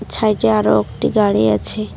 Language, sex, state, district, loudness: Bengali, female, West Bengal, Cooch Behar, -15 LUFS